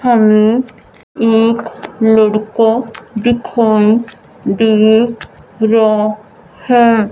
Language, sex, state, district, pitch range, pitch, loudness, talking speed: Hindi, female, Punjab, Fazilka, 215-230 Hz, 225 Hz, -12 LUFS, 60 wpm